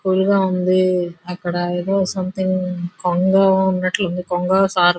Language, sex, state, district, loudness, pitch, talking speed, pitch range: Telugu, female, Andhra Pradesh, Guntur, -18 LUFS, 185 Hz, 110 wpm, 180-190 Hz